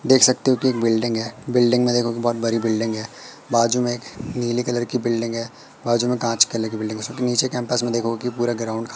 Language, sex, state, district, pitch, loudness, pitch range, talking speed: Hindi, female, Madhya Pradesh, Katni, 120 Hz, -21 LUFS, 115-125 Hz, 255 wpm